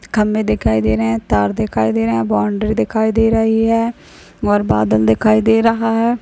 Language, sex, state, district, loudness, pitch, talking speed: Hindi, female, Chhattisgarh, Rajnandgaon, -15 LUFS, 210 Hz, 200 wpm